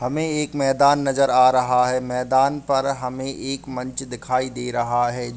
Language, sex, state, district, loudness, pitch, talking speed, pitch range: Hindi, male, Bihar, East Champaran, -21 LUFS, 130 Hz, 180 wpm, 125-135 Hz